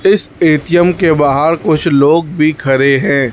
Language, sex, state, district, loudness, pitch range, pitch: Hindi, male, Chhattisgarh, Raipur, -11 LUFS, 140-170 Hz, 155 Hz